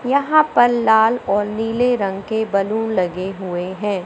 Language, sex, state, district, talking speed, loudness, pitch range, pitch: Hindi, male, Madhya Pradesh, Katni, 160 wpm, -18 LUFS, 195-240 Hz, 220 Hz